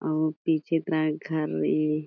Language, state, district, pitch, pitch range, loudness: Kurukh, Chhattisgarh, Jashpur, 155 Hz, 150-160 Hz, -27 LUFS